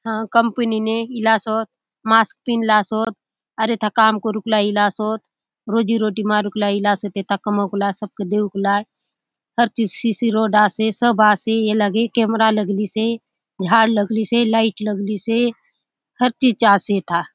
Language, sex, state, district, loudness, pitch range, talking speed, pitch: Halbi, female, Chhattisgarh, Bastar, -18 LUFS, 205-225 Hz, 140 wpm, 220 Hz